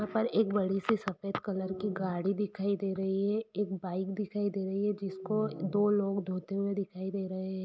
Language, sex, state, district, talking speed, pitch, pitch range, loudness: Hindi, female, Jharkhand, Jamtara, 220 wpm, 195 Hz, 190-205 Hz, -33 LUFS